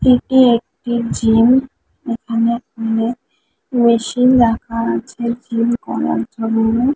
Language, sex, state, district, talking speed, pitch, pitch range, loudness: Bengali, female, West Bengal, Kolkata, 105 wpm, 235 Hz, 225-245 Hz, -16 LUFS